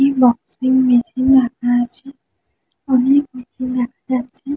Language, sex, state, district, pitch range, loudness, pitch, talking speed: Bengali, female, West Bengal, Jhargram, 245-265 Hz, -17 LUFS, 255 Hz, 145 wpm